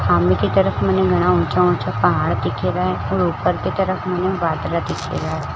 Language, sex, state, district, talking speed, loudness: Marwari, female, Rajasthan, Churu, 215 wpm, -19 LUFS